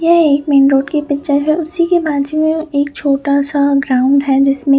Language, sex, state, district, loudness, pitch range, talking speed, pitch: Hindi, female, Punjab, Fazilka, -13 LUFS, 275-310 Hz, 215 wpm, 285 Hz